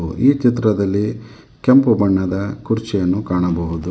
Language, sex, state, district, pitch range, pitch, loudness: Kannada, male, Karnataka, Bangalore, 90-115 Hz, 100 Hz, -17 LUFS